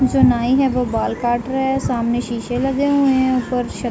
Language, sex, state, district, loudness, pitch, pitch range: Hindi, female, Uttar Pradesh, Jalaun, -18 LUFS, 250 Hz, 240-265 Hz